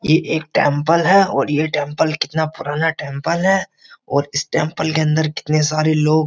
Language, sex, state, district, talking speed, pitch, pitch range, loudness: Hindi, male, Uttar Pradesh, Jyotiba Phule Nagar, 190 wpm, 155 Hz, 150-160 Hz, -18 LUFS